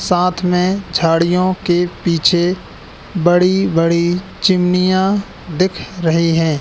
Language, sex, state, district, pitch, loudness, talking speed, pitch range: Hindi, male, Madhya Pradesh, Katni, 180 Hz, -15 LUFS, 100 wpm, 170-185 Hz